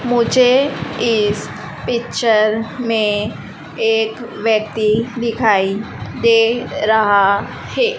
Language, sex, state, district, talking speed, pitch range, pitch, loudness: Hindi, female, Madhya Pradesh, Dhar, 75 wpm, 210-235 Hz, 220 Hz, -16 LUFS